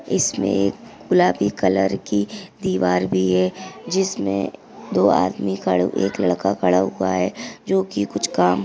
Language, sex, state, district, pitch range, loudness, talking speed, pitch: Hindi, female, Maharashtra, Aurangabad, 90-100 Hz, -20 LUFS, 155 wpm, 95 Hz